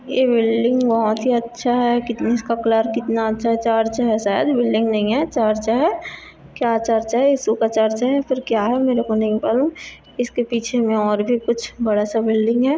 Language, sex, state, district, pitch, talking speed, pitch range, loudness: Hindi, female, Chhattisgarh, Korba, 230 Hz, 205 wpm, 220-245 Hz, -19 LUFS